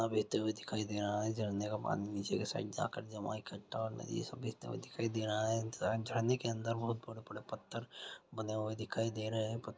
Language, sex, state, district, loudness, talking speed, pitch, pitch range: Hindi, male, Chhattisgarh, Bastar, -39 LUFS, 235 wpm, 110 Hz, 105-115 Hz